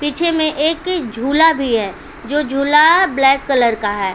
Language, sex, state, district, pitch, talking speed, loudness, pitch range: Hindi, female, Bihar, Patna, 285 Hz, 190 wpm, -14 LUFS, 240-320 Hz